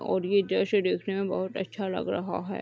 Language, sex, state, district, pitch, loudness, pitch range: Hindi, female, Uttar Pradesh, Deoria, 195 Hz, -28 LUFS, 190-200 Hz